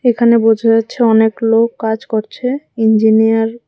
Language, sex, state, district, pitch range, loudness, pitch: Bengali, female, Tripura, West Tripura, 220-235 Hz, -13 LUFS, 225 Hz